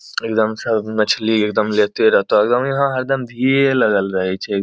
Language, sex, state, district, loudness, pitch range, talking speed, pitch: Angika, male, Bihar, Bhagalpur, -17 LUFS, 105-130 Hz, 170 wpm, 110 Hz